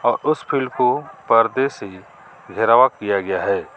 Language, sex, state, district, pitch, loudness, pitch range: Hindi, male, Jharkhand, Garhwa, 120 Hz, -18 LUFS, 100-135 Hz